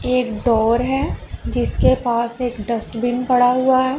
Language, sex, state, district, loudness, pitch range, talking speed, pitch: Hindi, female, Punjab, Pathankot, -18 LUFS, 235-255 Hz, 135 wpm, 245 Hz